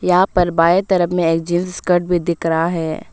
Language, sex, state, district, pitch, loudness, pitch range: Hindi, female, Arunachal Pradesh, Papum Pare, 175 Hz, -17 LUFS, 165-180 Hz